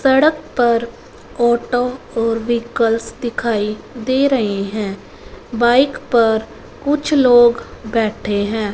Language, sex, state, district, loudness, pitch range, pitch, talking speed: Hindi, female, Punjab, Fazilka, -17 LUFS, 225-255 Hz, 235 Hz, 105 wpm